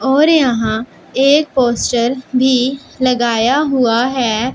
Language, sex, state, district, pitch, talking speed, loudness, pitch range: Hindi, female, Punjab, Pathankot, 255 Hz, 105 wpm, -14 LUFS, 240-270 Hz